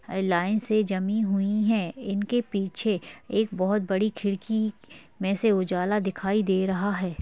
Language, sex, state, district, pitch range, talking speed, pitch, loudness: Hindi, female, Maharashtra, Pune, 190-215 Hz, 160 wpm, 200 Hz, -26 LUFS